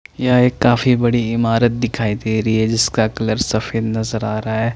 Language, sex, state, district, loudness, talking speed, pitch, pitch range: Hindi, male, Chandigarh, Chandigarh, -17 LUFS, 200 wpm, 115 Hz, 110-120 Hz